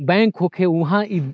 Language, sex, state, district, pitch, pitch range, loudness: Bhojpuri, male, Bihar, Saran, 180 Hz, 170-205 Hz, -18 LUFS